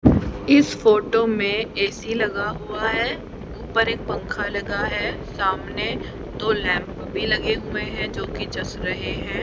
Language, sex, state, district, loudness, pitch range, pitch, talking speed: Hindi, female, Haryana, Charkhi Dadri, -23 LUFS, 210-230 Hz, 220 Hz, 145 wpm